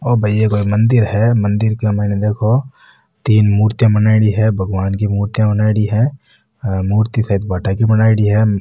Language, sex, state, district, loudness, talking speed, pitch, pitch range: Marwari, male, Rajasthan, Nagaur, -15 LUFS, 175 wpm, 105 Hz, 105-110 Hz